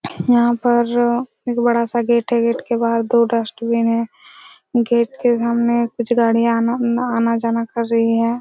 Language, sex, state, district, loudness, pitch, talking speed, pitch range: Hindi, female, Chhattisgarh, Raigarh, -17 LUFS, 235 Hz, 170 wpm, 230-240 Hz